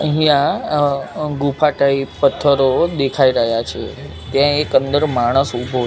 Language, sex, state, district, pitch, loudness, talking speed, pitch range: Gujarati, male, Gujarat, Gandhinagar, 140 Hz, -16 LUFS, 135 wpm, 130-150 Hz